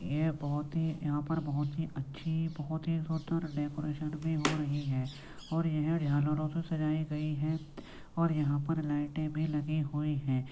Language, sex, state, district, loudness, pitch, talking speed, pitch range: Hindi, male, Uttar Pradesh, Muzaffarnagar, -34 LUFS, 155 Hz, 180 wpm, 150-160 Hz